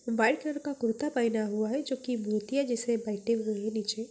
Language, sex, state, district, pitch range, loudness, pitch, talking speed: Hindi, female, Bihar, Jamui, 220-260 Hz, -31 LUFS, 230 Hz, 220 wpm